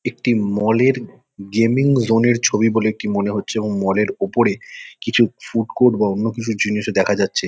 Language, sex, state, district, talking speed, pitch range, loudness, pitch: Bengali, male, West Bengal, Kolkata, 190 wpm, 105-115 Hz, -18 LUFS, 110 Hz